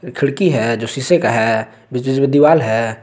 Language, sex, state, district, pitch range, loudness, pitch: Hindi, male, Jharkhand, Garhwa, 115-145 Hz, -15 LUFS, 125 Hz